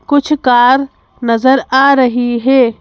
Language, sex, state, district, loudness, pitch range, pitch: Hindi, female, Madhya Pradesh, Bhopal, -11 LUFS, 245-275 Hz, 260 Hz